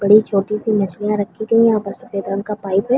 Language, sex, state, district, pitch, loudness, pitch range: Hindi, female, Chhattisgarh, Bilaspur, 210 Hz, -18 LUFS, 200-215 Hz